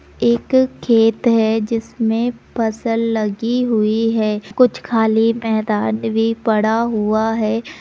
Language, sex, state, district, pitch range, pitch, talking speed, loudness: Hindi, female, Bihar, Purnia, 220-230 Hz, 225 Hz, 115 wpm, -17 LUFS